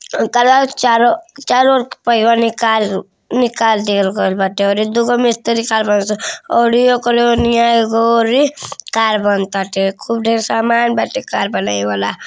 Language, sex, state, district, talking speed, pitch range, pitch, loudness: Hindi, male, Uttar Pradesh, Deoria, 135 wpm, 205-240 Hz, 230 Hz, -14 LUFS